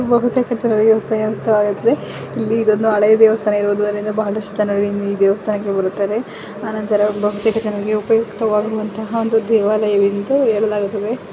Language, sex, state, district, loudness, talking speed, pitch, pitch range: Kannada, female, Karnataka, Bellary, -17 LUFS, 115 wpm, 215 Hz, 205-220 Hz